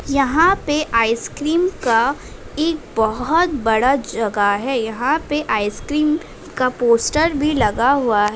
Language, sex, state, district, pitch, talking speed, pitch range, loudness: Hindi, female, Uttar Pradesh, Budaun, 275 Hz, 130 wpm, 230-305 Hz, -18 LUFS